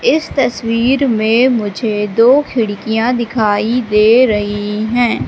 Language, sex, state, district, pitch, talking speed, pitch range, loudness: Hindi, female, Madhya Pradesh, Katni, 230 Hz, 115 wpm, 210-250 Hz, -13 LUFS